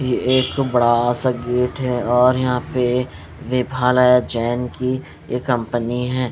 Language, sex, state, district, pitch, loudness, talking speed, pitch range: Hindi, male, Punjab, Fazilka, 125 Hz, -19 LUFS, 140 wpm, 120-125 Hz